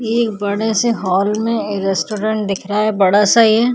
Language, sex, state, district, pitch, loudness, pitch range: Hindi, female, Uttar Pradesh, Jyotiba Phule Nagar, 215 Hz, -16 LUFS, 200-225 Hz